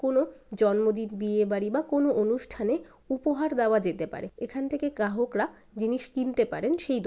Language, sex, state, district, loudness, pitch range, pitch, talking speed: Bengali, female, West Bengal, Jalpaiguri, -28 LUFS, 210-270 Hz, 240 Hz, 160 wpm